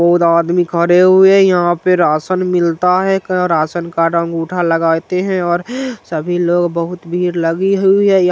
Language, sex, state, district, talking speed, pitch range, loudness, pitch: Hindi, male, Bihar, Vaishali, 180 wpm, 170-185 Hz, -13 LUFS, 175 Hz